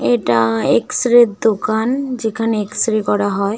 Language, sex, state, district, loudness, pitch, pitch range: Bengali, female, West Bengal, Malda, -16 LUFS, 215 Hz, 200-230 Hz